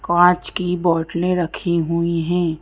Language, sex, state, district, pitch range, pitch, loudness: Hindi, female, Madhya Pradesh, Bhopal, 170-180 Hz, 170 Hz, -19 LUFS